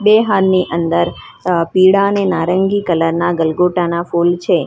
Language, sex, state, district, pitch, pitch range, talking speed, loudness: Gujarati, female, Gujarat, Valsad, 175 Hz, 170-190 Hz, 165 wpm, -14 LUFS